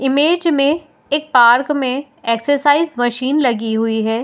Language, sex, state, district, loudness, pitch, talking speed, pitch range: Hindi, female, Uttar Pradesh, Etah, -15 LUFS, 275 Hz, 140 wpm, 240-295 Hz